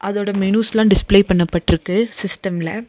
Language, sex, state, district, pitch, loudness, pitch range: Tamil, female, Tamil Nadu, Nilgiris, 200 Hz, -17 LUFS, 185-215 Hz